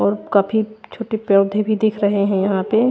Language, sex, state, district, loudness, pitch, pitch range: Hindi, female, Haryana, Rohtak, -18 LUFS, 205 Hz, 195-220 Hz